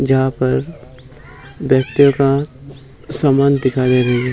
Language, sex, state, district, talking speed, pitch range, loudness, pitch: Hindi, male, Bihar, Gaya, 125 wpm, 130-140 Hz, -15 LUFS, 135 Hz